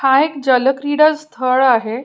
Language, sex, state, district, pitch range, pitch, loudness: Marathi, female, Maharashtra, Pune, 255-290 Hz, 270 Hz, -15 LUFS